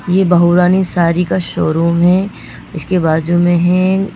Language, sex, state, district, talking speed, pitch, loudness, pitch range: Hindi, female, Madhya Pradesh, Bhopal, 145 wpm, 175 Hz, -13 LUFS, 170-185 Hz